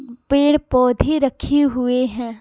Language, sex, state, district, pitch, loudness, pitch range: Hindi, female, Bihar, Patna, 255 Hz, -18 LUFS, 245-285 Hz